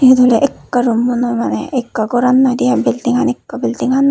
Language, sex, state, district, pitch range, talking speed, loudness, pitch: Chakma, female, Tripura, West Tripura, 245-260 Hz, 190 wpm, -14 LUFS, 250 Hz